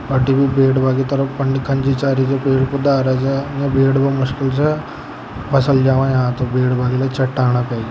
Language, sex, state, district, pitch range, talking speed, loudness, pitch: Hindi, male, Rajasthan, Nagaur, 130-135 Hz, 180 wpm, -16 LUFS, 135 Hz